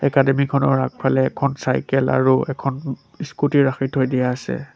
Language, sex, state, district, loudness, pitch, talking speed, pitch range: Assamese, male, Assam, Sonitpur, -19 LUFS, 135 Hz, 150 wpm, 130-140 Hz